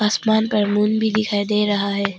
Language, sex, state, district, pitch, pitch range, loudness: Hindi, female, Arunachal Pradesh, Papum Pare, 210 Hz, 205-215 Hz, -19 LUFS